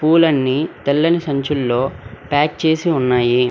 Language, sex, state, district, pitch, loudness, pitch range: Telugu, male, Telangana, Hyderabad, 145 Hz, -17 LUFS, 130-160 Hz